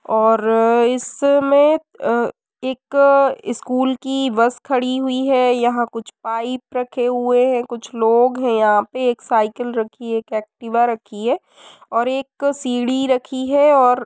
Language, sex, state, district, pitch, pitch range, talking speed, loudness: Hindi, female, Uttar Pradesh, Varanasi, 245 Hz, 230-260 Hz, 155 wpm, -18 LUFS